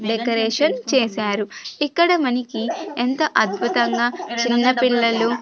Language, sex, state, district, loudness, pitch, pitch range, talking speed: Telugu, female, Andhra Pradesh, Sri Satya Sai, -20 LUFS, 240 Hz, 230-255 Hz, 90 wpm